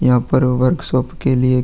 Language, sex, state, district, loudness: Hindi, male, Uttar Pradesh, Jalaun, -16 LUFS